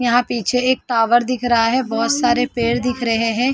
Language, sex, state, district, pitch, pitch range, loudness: Hindi, female, Chhattisgarh, Rajnandgaon, 245 Hz, 230-250 Hz, -17 LUFS